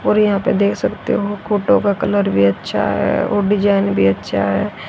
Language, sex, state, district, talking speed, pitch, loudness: Hindi, female, Haryana, Jhajjar, 210 wpm, 200 Hz, -16 LUFS